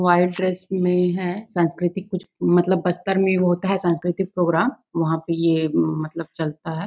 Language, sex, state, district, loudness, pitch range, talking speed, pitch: Hindi, female, Chhattisgarh, Bastar, -21 LUFS, 165-185 Hz, 175 wpm, 180 Hz